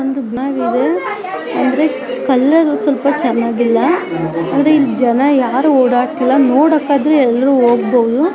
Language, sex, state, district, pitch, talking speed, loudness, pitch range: Kannada, female, Karnataka, Chamarajanagar, 265 Hz, 160 wpm, -13 LUFS, 240-285 Hz